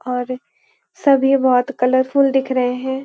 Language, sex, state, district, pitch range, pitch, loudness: Hindi, female, Uttarakhand, Uttarkashi, 255-275 Hz, 265 Hz, -17 LUFS